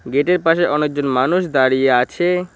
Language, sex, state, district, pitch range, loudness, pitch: Bengali, male, West Bengal, Cooch Behar, 130-175 Hz, -16 LUFS, 150 Hz